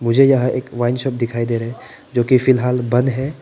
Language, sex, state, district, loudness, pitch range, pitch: Hindi, male, Arunachal Pradesh, Papum Pare, -17 LUFS, 120-130 Hz, 125 Hz